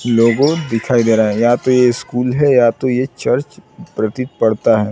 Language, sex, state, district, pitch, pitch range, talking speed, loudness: Hindi, male, Chhattisgarh, Bilaspur, 120 Hz, 115-130 Hz, 205 wpm, -15 LUFS